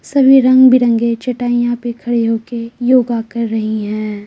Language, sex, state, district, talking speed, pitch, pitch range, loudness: Hindi, female, Bihar, Patna, 140 wpm, 235 Hz, 230-250 Hz, -13 LUFS